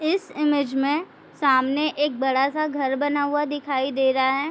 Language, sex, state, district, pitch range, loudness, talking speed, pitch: Hindi, female, Bihar, Vaishali, 265-295 Hz, -23 LUFS, 185 wpm, 285 Hz